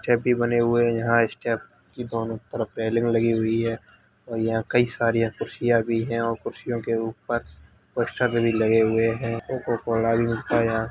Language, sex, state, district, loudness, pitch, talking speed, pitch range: Hindi, male, Uttar Pradesh, Hamirpur, -24 LUFS, 115 Hz, 185 wpm, 115-120 Hz